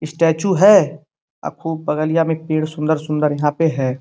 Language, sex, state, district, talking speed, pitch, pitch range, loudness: Hindi, male, Uttar Pradesh, Gorakhpur, 180 wpm, 155 Hz, 150-165 Hz, -17 LUFS